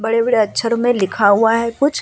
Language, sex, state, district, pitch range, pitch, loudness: Hindi, female, Uttar Pradesh, Budaun, 220-235 Hz, 230 Hz, -15 LUFS